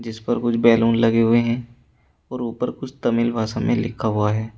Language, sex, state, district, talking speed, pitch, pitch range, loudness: Hindi, male, Uttar Pradesh, Shamli, 210 wpm, 115 Hz, 110-120 Hz, -20 LUFS